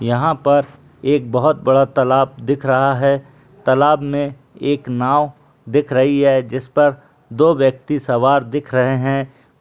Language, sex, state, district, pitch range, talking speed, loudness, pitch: Hindi, male, Jharkhand, Jamtara, 130-145 Hz, 145 wpm, -16 LUFS, 140 Hz